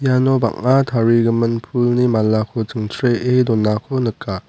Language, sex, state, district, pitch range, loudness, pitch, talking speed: Garo, male, Meghalaya, West Garo Hills, 110-125 Hz, -17 LUFS, 115 Hz, 105 wpm